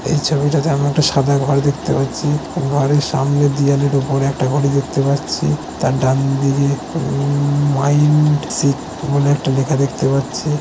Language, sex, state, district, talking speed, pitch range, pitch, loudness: Bengali, male, West Bengal, Jalpaiguri, 145 wpm, 135-145 Hz, 140 Hz, -16 LUFS